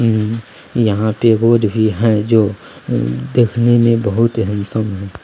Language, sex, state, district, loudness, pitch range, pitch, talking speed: Hindi, male, Bihar, Lakhisarai, -15 LUFS, 105-115 Hz, 110 Hz, 160 wpm